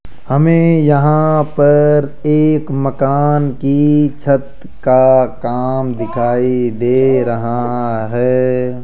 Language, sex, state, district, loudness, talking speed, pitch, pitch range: Hindi, male, Rajasthan, Jaipur, -13 LUFS, 90 wpm, 135 Hz, 125-145 Hz